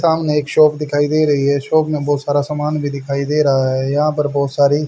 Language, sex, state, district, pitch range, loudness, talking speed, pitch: Hindi, male, Haryana, Charkhi Dadri, 140-150 Hz, -16 LUFS, 255 wpm, 145 Hz